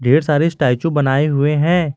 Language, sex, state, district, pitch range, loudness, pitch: Hindi, male, Jharkhand, Garhwa, 140-160 Hz, -16 LUFS, 150 Hz